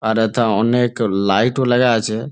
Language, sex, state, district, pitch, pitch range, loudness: Bengali, male, West Bengal, Malda, 115 Hz, 110-120 Hz, -16 LUFS